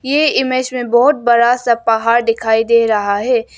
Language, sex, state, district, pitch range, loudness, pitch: Hindi, female, Arunachal Pradesh, Lower Dibang Valley, 230-255 Hz, -13 LUFS, 235 Hz